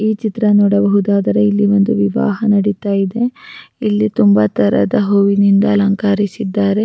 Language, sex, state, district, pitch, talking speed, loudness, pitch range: Kannada, female, Karnataka, Raichur, 200 Hz, 115 wpm, -14 LUFS, 200-210 Hz